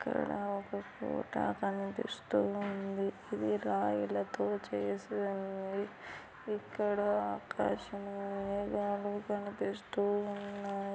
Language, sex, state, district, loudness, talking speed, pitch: Telugu, female, Andhra Pradesh, Anantapur, -36 LUFS, 65 wpm, 200 Hz